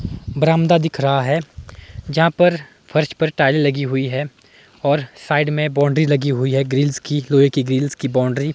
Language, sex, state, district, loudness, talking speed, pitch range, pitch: Hindi, male, Himachal Pradesh, Shimla, -18 LUFS, 190 wpm, 135-150 Hz, 145 Hz